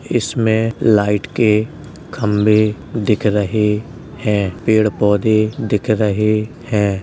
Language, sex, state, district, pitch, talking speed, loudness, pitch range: Hindi, male, Uttar Pradesh, Jalaun, 110 Hz, 100 wpm, -16 LUFS, 105-110 Hz